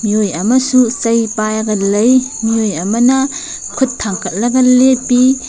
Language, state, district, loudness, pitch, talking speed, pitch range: Manipuri, Manipur, Imphal West, -13 LUFS, 235 Hz, 110 wpm, 215-255 Hz